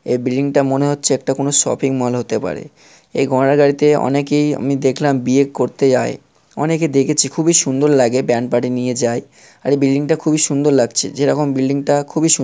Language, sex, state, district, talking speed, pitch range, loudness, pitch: Bengali, male, West Bengal, North 24 Parganas, 205 wpm, 130-145 Hz, -16 LUFS, 140 Hz